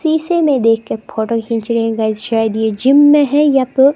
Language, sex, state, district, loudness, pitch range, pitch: Hindi, female, Himachal Pradesh, Shimla, -14 LUFS, 225-290 Hz, 235 Hz